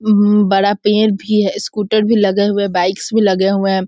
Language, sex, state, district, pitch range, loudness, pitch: Hindi, female, Bihar, Sitamarhi, 195-210 Hz, -14 LUFS, 205 Hz